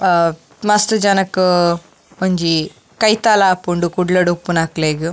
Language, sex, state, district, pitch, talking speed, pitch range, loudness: Tulu, female, Karnataka, Dakshina Kannada, 180 Hz, 95 wpm, 170-195 Hz, -15 LUFS